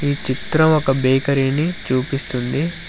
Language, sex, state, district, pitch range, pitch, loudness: Telugu, male, Telangana, Hyderabad, 130-155 Hz, 135 Hz, -18 LUFS